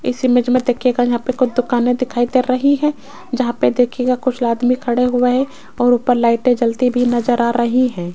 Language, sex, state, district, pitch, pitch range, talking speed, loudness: Hindi, female, Rajasthan, Jaipur, 250 Hz, 240-255 Hz, 220 wpm, -16 LUFS